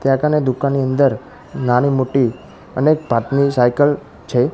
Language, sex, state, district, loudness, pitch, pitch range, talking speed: Gujarati, male, Gujarat, Gandhinagar, -17 LUFS, 135 Hz, 125-140 Hz, 145 wpm